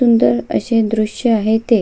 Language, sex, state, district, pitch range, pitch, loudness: Marathi, female, Maharashtra, Sindhudurg, 215-230 Hz, 220 Hz, -16 LUFS